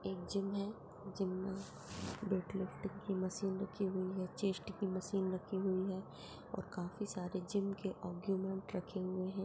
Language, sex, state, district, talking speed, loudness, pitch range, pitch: Hindi, female, Bihar, Saharsa, 165 wpm, -41 LUFS, 185-195 Hz, 190 Hz